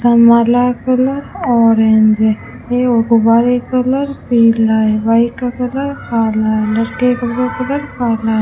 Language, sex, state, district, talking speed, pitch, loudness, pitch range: Hindi, female, Rajasthan, Bikaner, 165 wpm, 235 Hz, -13 LUFS, 225-250 Hz